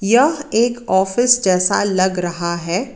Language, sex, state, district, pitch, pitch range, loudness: Hindi, female, Karnataka, Bangalore, 195 Hz, 180-245 Hz, -16 LUFS